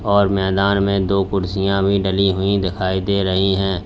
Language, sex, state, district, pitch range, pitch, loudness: Hindi, male, Uttar Pradesh, Lalitpur, 95-100 Hz, 95 Hz, -18 LUFS